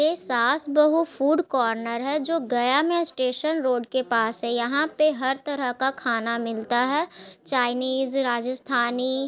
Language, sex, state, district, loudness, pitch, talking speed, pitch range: Hindi, female, Bihar, Gaya, -24 LUFS, 260 Hz, 155 wpm, 240-295 Hz